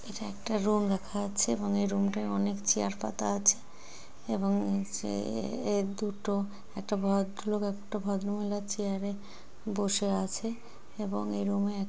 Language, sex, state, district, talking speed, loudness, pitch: Bengali, female, West Bengal, Jalpaiguri, 140 wpm, -31 LUFS, 200 Hz